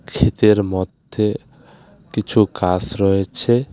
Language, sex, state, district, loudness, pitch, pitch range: Bengali, male, West Bengal, Alipurduar, -18 LUFS, 105 Hz, 95-135 Hz